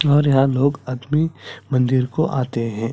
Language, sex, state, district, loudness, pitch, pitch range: Hindi, male, Chhattisgarh, Sarguja, -19 LUFS, 135 Hz, 125-145 Hz